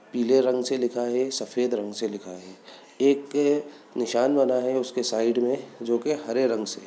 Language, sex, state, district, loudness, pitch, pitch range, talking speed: Hindi, male, Bihar, Sitamarhi, -25 LUFS, 125 Hz, 120-135 Hz, 210 wpm